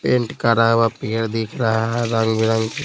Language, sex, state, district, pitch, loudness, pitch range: Hindi, male, Bihar, Patna, 115 Hz, -19 LUFS, 110-115 Hz